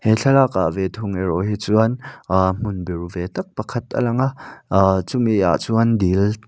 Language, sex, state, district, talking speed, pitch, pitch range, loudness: Mizo, male, Mizoram, Aizawl, 185 wpm, 100 Hz, 95-115 Hz, -19 LUFS